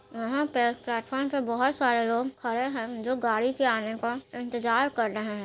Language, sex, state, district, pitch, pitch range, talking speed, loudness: Hindi, female, Bihar, Gaya, 240 Hz, 230-260 Hz, 200 wpm, -28 LUFS